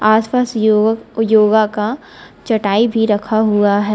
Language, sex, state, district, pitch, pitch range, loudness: Hindi, female, Uttar Pradesh, Lalitpur, 220 Hz, 210-225 Hz, -14 LUFS